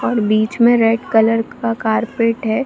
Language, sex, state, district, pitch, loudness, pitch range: Hindi, female, Bihar, Jamui, 225 Hz, -16 LUFS, 220-235 Hz